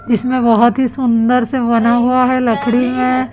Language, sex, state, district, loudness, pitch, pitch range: Hindi, female, Chhattisgarh, Raipur, -13 LUFS, 245 Hz, 235-255 Hz